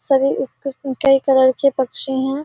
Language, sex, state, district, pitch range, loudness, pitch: Hindi, female, Bihar, Kishanganj, 265-275 Hz, -17 LUFS, 270 Hz